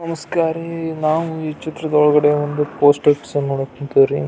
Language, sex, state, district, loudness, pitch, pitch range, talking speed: Kannada, male, Karnataka, Belgaum, -18 LUFS, 150 Hz, 145-160 Hz, 125 wpm